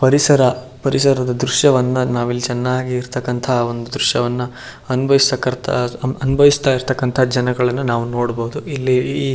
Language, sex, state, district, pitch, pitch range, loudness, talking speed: Kannada, male, Karnataka, Shimoga, 130 Hz, 125-135 Hz, -17 LUFS, 95 wpm